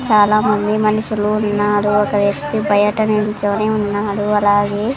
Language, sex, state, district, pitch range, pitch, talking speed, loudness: Telugu, female, Andhra Pradesh, Sri Satya Sai, 205-215 Hz, 210 Hz, 120 wpm, -16 LUFS